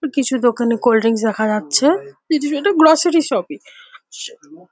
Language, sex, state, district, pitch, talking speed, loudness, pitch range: Bengali, female, West Bengal, Paschim Medinipur, 285 Hz, 115 wpm, -16 LUFS, 230-320 Hz